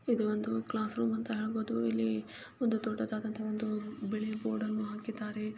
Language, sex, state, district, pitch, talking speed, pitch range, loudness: Kannada, female, Karnataka, Chamarajanagar, 215 Hz, 150 wpm, 210-220 Hz, -35 LUFS